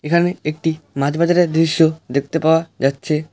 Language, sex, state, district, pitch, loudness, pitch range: Bengali, male, West Bengal, Alipurduar, 160 Hz, -18 LUFS, 150-165 Hz